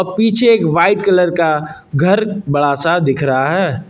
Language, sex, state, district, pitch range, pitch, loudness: Hindi, male, Uttar Pradesh, Lucknow, 145-200 Hz, 175 Hz, -14 LUFS